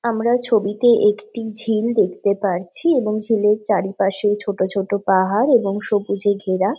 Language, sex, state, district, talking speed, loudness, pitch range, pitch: Bengali, female, West Bengal, Jhargram, 150 wpm, -19 LUFS, 200-225 Hz, 210 Hz